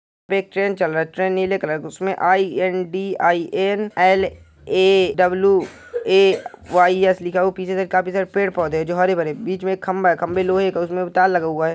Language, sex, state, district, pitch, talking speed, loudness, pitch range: Hindi, male, Uttar Pradesh, Jyotiba Phule Nagar, 185 Hz, 250 wpm, -19 LUFS, 175-190 Hz